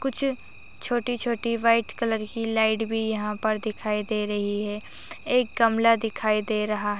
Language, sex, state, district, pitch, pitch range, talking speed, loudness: Hindi, female, Maharashtra, Nagpur, 220 Hz, 210-230 Hz, 165 wpm, -25 LUFS